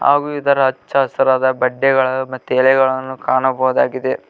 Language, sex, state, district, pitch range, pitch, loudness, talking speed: Kannada, male, Karnataka, Koppal, 130-135 Hz, 130 Hz, -16 LUFS, 110 wpm